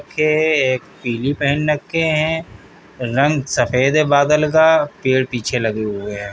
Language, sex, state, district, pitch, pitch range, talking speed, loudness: Hindi, male, Uttar Pradesh, Hamirpur, 140 Hz, 125-155 Hz, 150 wpm, -17 LUFS